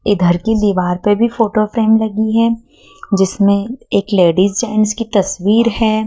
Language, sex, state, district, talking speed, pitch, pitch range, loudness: Hindi, female, Madhya Pradesh, Dhar, 160 wpm, 215 Hz, 200-225 Hz, -14 LUFS